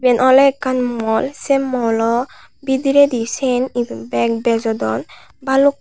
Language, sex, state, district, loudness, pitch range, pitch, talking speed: Chakma, male, Tripura, Unakoti, -17 LUFS, 230-270 Hz, 255 Hz, 135 wpm